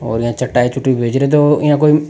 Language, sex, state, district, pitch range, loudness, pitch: Rajasthani, male, Rajasthan, Nagaur, 125-150 Hz, -14 LUFS, 135 Hz